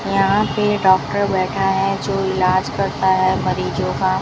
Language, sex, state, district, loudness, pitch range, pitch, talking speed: Hindi, female, Rajasthan, Bikaner, -18 LUFS, 185-195 Hz, 190 Hz, 170 wpm